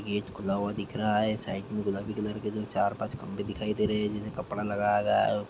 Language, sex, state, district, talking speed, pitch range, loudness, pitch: Hindi, male, Bihar, Jamui, 260 wpm, 100-105 Hz, -30 LUFS, 105 Hz